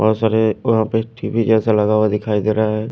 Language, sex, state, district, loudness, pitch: Hindi, male, Haryana, Charkhi Dadri, -17 LUFS, 110 Hz